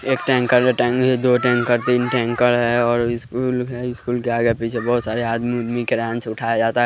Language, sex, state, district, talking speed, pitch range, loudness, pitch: Hindi, male, Bihar, West Champaran, 200 wpm, 120-125 Hz, -19 LUFS, 120 Hz